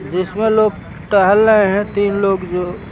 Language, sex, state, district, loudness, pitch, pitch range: Hindi, male, Uttar Pradesh, Lucknow, -15 LUFS, 200 Hz, 185-210 Hz